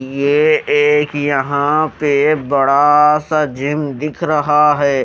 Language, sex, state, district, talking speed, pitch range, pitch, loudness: Hindi, male, Haryana, Rohtak, 120 wpm, 140-150 Hz, 145 Hz, -14 LUFS